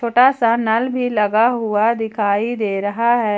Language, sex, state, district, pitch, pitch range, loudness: Hindi, female, Jharkhand, Ranchi, 225 Hz, 210-240 Hz, -17 LUFS